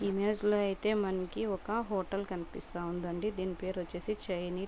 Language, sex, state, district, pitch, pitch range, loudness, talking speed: Telugu, female, Andhra Pradesh, Guntur, 195 Hz, 180-210 Hz, -35 LUFS, 155 wpm